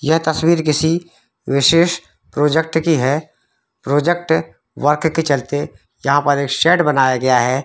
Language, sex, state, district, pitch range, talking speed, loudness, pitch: Hindi, male, Jharkhand, Sahebganj, 140-160 Hz, 150 wpm, -16 LUFS, 150 Hz